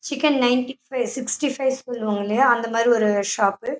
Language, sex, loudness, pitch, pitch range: Tamil, female, -21 LUFS, 245 Hz, 225-265 Hz